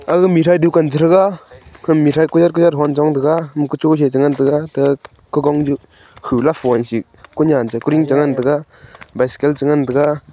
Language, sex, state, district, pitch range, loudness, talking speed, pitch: Wancho, male, Arunachal Pradesh, Longding, 140-160 Hz, -15 LUFS, 165 wpm, 150 Hz